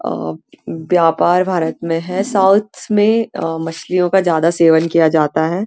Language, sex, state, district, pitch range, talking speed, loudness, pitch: Hindi, female, Uttarakhand, Uttarkashi, 160-190 Hz, 160 wpm, -15 LUFS, 170 Hz